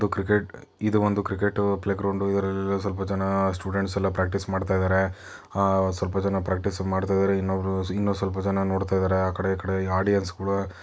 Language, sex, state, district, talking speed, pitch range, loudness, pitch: Kannada, male, Karnataka, Chamarajanagar, 170 wpm, 95-100 Hz, -25 LUFS, 95 Hz